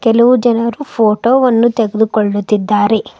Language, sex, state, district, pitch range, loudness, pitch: Kannada, female, Karnataka, Bidar, 210-240 Hz, -12 LUFS, 225 Hz